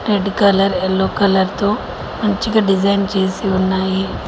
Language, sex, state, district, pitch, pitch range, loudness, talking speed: Telugu, female, Telangana, Mahabubabad, 195 Hz, 190-205 Hz, -16 LUFS, 125 wpm